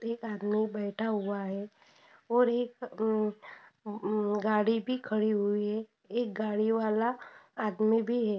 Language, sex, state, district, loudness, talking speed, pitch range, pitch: Hindi, female, Maharashtra, Pune, -31 LUFS, 135 wpm, 210-230 Hz, 215 Hz